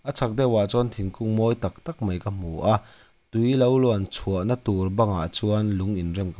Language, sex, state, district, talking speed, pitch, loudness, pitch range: Mizo, male, Mizoram, Aizawl, 205 wpm, 105 Hz, -22 LUFS, 95-120 Hz